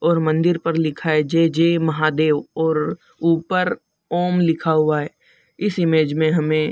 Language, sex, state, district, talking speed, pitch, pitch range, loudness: Hindi, male, Bihar, Begusarai, 170 wpm, 160 Hz, 155-170 Hz, -19 LUFS